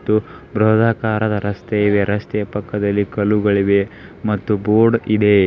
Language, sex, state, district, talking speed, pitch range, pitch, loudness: Kannada, male, Karnataka, Belgaum, 110 wpm, 100-110 Hz, 105 Hz, -18 LUFS